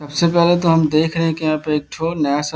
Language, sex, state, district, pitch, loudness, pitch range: Hindi, male, Bihar, Darbhanga, 160 Hz, -17 LUFS, 150-165 Hz